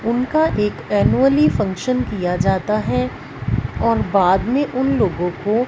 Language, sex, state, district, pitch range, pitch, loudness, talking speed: Hindi, female, Punjab, Fazilka, 170-250 Hz, 200 Hz, -18 LUFS, 135 wpm